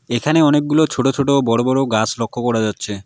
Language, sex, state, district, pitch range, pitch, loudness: Bengali, male, West Bengal, Alipurduar, 115-140 Hz, 125 Hz, -17 LUFS